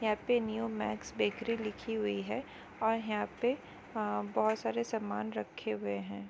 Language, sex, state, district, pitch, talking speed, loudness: Hindi, female, Chhattisgarh, Jashpur, 210 Hz, 160 wpm, -35 LUFS